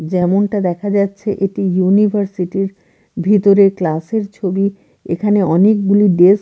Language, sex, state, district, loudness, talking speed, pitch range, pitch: Bengali, female, Bihar, Katihar, -15 LUFS, 130 wpm, 185-205 Hz, 195 Hz